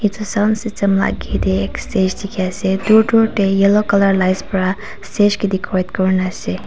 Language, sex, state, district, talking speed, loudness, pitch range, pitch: Nagamese, female, Nagaland, Kohima, 215 wpm, -16 LUFS, 185-205 Hz, 195 Hz